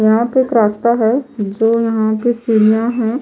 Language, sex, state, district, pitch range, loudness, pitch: Hindi, female, Chhattisgarh, Raipur, 220-235 Hz, -14 LUFS, 225 Hz